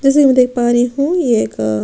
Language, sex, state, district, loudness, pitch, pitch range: Hindi, female, Chhattisgarh, Sukma, -14 LUFS, 250 Hz, 230-275 Hz